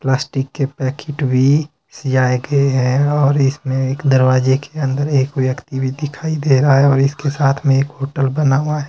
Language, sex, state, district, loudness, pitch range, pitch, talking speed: Hindi, male, Himachal Pradesh, Shimla, -16 LUFS, 130-145 Hz, 135 Hz, 195 wpm